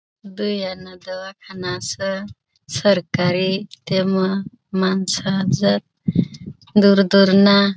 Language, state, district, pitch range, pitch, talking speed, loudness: Bhili, Maharashtra, Dhule, 185-200 Hz, 190 Hz, 70 wpm, -19 LUFS